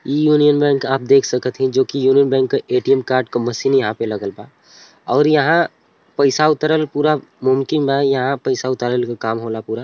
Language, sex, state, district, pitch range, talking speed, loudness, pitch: Bhojpuri, male, Uttar Pradesh, Ghazipur, 125-145 Hz, 205 wpm, -17 LUFS, 135 Hz